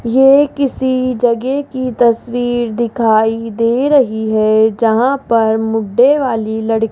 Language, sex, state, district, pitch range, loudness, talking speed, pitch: Hindi, female, Rajasthan, Jaipur, 225-260 Hz, -13 LUFS, 130 wpm, 235 Hz